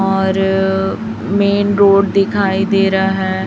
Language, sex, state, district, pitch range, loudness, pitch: Hindi, female, Chhattisgarh, Raipur, 195-200 Hz, -14 LUFS, 195 Hz